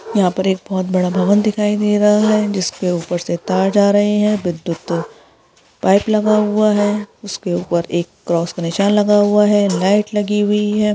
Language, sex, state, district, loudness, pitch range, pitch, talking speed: Hindi, female, Jharkhand, Sahebganj, -16 LUFS, 180-210 Hz, 205 Hz, 195 wpm